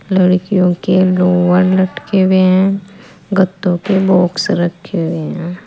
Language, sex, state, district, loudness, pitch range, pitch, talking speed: Hindi, female, Uttar Pradesh, Saharanpur, -13 LUFS, 180-190 Hz, 185 Hz, 125 wpm